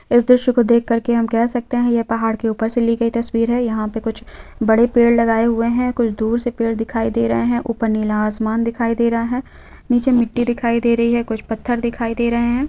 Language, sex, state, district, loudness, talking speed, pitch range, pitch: Hindi, female, Jharkhand, Sahebganj, -18 LUFS, 245 wpm, 225-240 Hz, 235 Hz